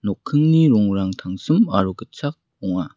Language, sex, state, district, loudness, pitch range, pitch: Garo, male, Meghalaya, West Garo Hills, -19 LUFS, 95-145 Hz, 100 Hz